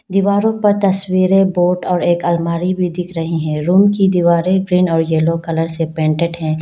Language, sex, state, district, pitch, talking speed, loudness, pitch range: Hindi, female, Arunachal Pradesh, Lower Dibang Valley, 175 Hz, 190 wpm, -15 LUFS, 165-190 Hz